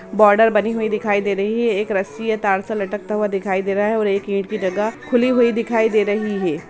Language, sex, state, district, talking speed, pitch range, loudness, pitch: Bhojpuri, female, Bihar, Saran, 260 wpm, 200-220 Hz, -19 LUFS, 210 Hz